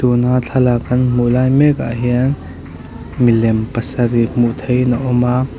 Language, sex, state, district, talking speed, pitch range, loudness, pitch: Mizo, male, Mizoram, Aizawl, 160 wpm, 115-125 Hz, -15 LUFS, 125 Hz